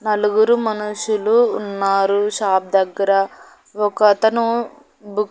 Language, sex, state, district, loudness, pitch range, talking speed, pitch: Telugu, female, Andhra Pradesh, Annamaya, -18 LUFS, 200-220 Hz, 90 wpm, 210 Hz